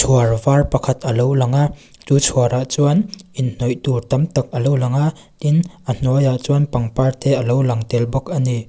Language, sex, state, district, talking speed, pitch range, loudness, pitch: Mizo, female, Mizoram, Aizawl, 215 wpm, 125-145 Hz, -18 LUFS, 135 Hz